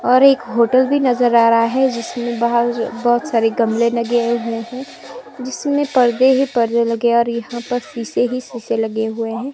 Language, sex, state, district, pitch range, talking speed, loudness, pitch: Hindi, female, Himachal Pradesh, Shimla, 235-255 Hz, 195 wpm, -17 LUFS, 240 Hz